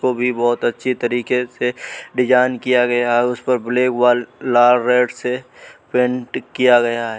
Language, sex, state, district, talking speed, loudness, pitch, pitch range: Hindi, male, Uttar Pradesh, Muzaffarnagar, 175 wpm, -17 LUFS, 125 Hz, 120-125 Hz